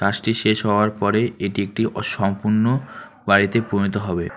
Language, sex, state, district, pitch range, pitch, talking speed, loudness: Bengali, male, West Bengal, Alipurduar, 100-110 Hz, 105 Hz, 135 wpm, -20 LUFS